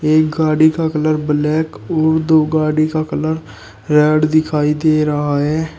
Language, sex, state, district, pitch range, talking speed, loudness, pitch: Hindi, male, Uttar Pradesh, Shamli, 150-155 Hz, 155 wpm, -15 LUFS, 155 Hz